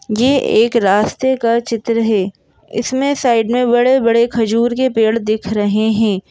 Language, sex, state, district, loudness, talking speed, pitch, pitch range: Hindi, female, Madhya Pradesh, Bhopal, -15 LUFS, 160 wpm, 230 Hz, 220-245 Hz